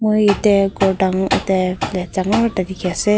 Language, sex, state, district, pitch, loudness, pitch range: Nagamese, female, Nagaland, Kohima, 195 Hz, -17 LUFS, 185-210 Hz